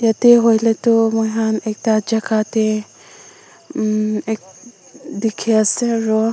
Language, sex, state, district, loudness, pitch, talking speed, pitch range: Nagamese, female, Nagaland, Dimapur, -17 LUFS, 220 Hz, 115 wpm, 215-225 Hz